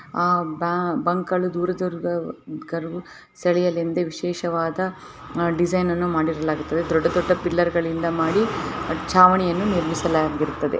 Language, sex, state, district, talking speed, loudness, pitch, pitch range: Kannada, female, Karnataka, Bellary, 95 wpm, -22 LUFS, 175 Hz, 165-180 Hz